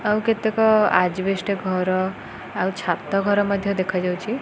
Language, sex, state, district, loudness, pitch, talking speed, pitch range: Odia, female, Odisha, Khordha, -21 LUFS, 195 Hz, 120 wpm, 185-210 Hz